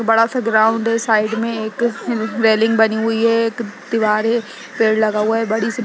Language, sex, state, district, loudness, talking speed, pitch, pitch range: Hindi, female, Uttarakhand, Uttarkashi, -17 LUFS, 225 wpm, 225 Hz, 220-230 Hz